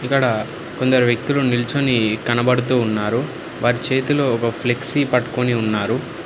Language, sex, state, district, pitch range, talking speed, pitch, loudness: Telugu, male, Telangana, Hyderabad, 120-130 Hz, 115 wpm, 125 Hz, -19 LUFS